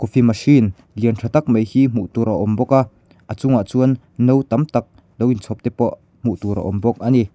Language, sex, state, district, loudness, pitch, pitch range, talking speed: Mizo, male, Mizoram, Aizawl, -18 LUFS, 115 Hz, 105-125 Hz, 245 wpm